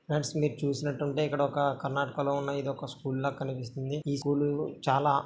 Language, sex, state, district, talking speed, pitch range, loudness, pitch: Telugu, male, Karnataka, Dharwad, 170 wpm, 140-145 Hz, -31 LUFS, 140 Hz